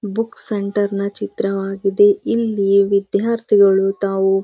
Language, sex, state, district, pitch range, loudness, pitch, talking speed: Kannada, female, Karnataka, Gulbarga, 195-205 Hz, -17 LUFS, 200 Hz, 95 wpm